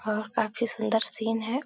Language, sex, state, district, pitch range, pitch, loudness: Hindi, female, Bihar, Supaul, 220-230 Hz, 225 Hz, -28 LUFS